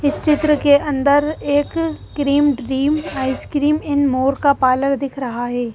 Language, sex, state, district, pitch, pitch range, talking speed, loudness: Hindi, female, Madhya Pradesh, Bhopal, 285 Hz, 265-295 Hz, 155 wpm, -17 LUFS